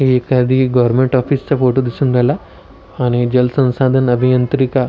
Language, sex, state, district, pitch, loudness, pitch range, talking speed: Marathi, male, Maharashtra, Nagpur, 125 Hz, -14 LUFS, 125-130 Hz, 135 wpm